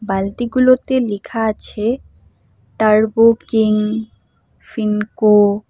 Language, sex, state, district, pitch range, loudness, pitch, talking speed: Bengali, female, Assam, Hailakandi, 210-230 Hz, -16 LUFS, 220 Hz, 75 wpm